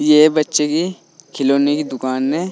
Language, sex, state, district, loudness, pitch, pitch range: Hindi, male, Uttar Pradesh, Saharanpur, -17 LUFS, 150 Hz, 140-155 Hz